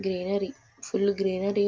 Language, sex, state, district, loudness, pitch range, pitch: Telugu, female, Andhra Pradesh, Visakhapatnam, -28 LUFS, 190-200 Hz, 195 Hz